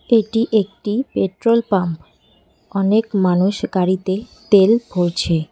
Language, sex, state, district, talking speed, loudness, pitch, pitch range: Bengali, female, West Bengal, Cooch Behar, 100 wpm, -18 LUFS, 200 Hz, 185-225 Hz